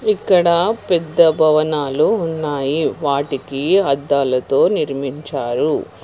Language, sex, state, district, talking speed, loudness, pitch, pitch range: Telugu, female, Telangana, Hyderabad, 70 wpm, -17 LUFS, 150 Hz, 140-170 Hz